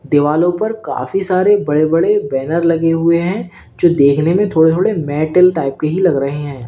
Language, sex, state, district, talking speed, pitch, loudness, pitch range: Hindi, male, Uttar Pradesh, Lalitpur, 195 wpm, 165 Hz, -14 LUFS, 145-185 Hz